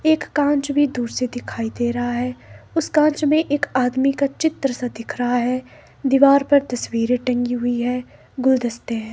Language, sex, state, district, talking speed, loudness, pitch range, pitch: Hindi, female, Himachal Pradesh, Shimla, 185 wpm, -20 LUFS, 245-285 Hz, 255 Hz